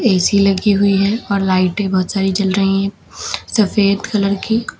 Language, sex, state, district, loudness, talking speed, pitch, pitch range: Hindi, male, Uttar Pradesh, Lucknow, -16 LUFS, 175 wpm, 200 Hz, 195-205 Hz